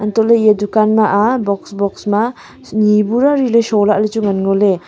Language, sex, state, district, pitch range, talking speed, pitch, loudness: Wancho, female, Arunachal Pradesh, Longding, 205-225 Hz, 185 wpm, 210 Hz, -14 LUFS